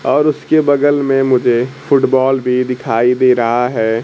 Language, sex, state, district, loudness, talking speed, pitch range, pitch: Hindi, male, Bihar, Kaimur, -13 LUFS, 165 wpm, 125-140 Hz, 130 Hz